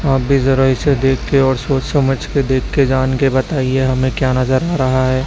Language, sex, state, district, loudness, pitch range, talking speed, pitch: Hindi, male, Chhattisgarh, Raipur, -15 LUFS, 130-135 Hz, 240 wpm, 130 Hz